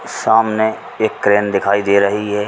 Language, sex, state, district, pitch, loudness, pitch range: Hindi, male, Uttar Pradesh, Ghazipur, 105 Hz, -15 LUFS, 100-110 Hz